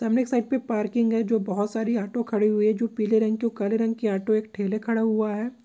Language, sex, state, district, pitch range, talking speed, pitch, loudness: Marwari, female, Rajasthan, Nagaur, 215-230 Hz, 245 wpm, 220 Hz, -25 LUFS